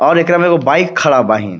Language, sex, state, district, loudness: Bhojpuri, male, Jharkhand, Palamu, -12 LUFS